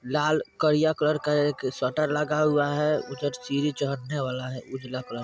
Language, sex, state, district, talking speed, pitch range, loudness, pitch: Hindi, male, Bihar, Vaishali, 195 wpm, 130-150 Hz, -26 LUFS, 145 Hz